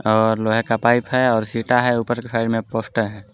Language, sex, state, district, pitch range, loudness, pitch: Hindi, male, Jharkhand, Garhwa, 110-120 Hz, -19 LUFS, 115 Hz